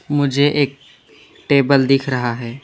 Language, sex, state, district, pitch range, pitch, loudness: Hindi, male, West Bengal, Alipurduar, 125-140 Hz, 140 Hz, -17 LUFS